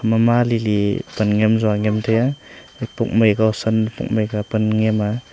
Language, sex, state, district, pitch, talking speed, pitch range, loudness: Wancho, male, Arunachal Pradesh, Longding, 110 Hz, 200 wpm, 105-115 Hz, -18 LUFS